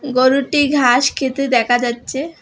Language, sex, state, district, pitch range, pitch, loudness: Bengali, female, West Bengal, Alipurduar, 245-280 Hz, 265 Hz, -15 LUFS